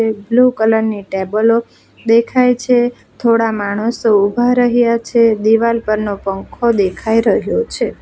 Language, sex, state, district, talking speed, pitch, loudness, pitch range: Gujarati, female, Gujarat, Valsad, 135 wpm, 230 Hz, -14 LUFS, 215-240 Hz